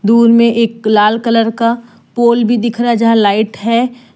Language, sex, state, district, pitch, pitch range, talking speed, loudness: Hindi, female, Jharkhand, Deoghar, 230 Hz, 225-235 Hz, 200 wpm, -12 LUFS